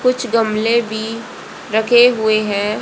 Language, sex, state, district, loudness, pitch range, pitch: Hindi, female, Haryana, Rohtak, -15 LUFS, 215-240 Hz, 225 Hz